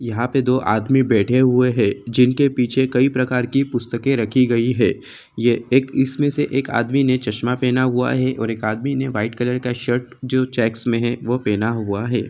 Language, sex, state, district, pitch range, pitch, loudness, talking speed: Hindi, male, Jharkhand, Sahebganj, 115-130 Hz, 125 Hz, -19 LUFS, 220 wpm